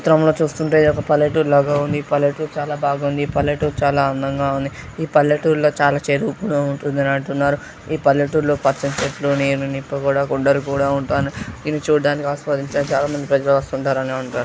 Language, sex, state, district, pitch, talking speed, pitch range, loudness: Telugu, female, Andhra Pradesh, Krishna, 145 Hz, 180 wpm, 140-150 Hz, -19 LUFS